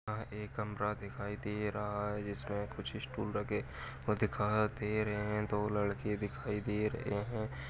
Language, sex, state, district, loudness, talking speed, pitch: Hindi, male, Uttar Pradesh, Deoria, -37 LUFS, 170 wpm, 105 Hz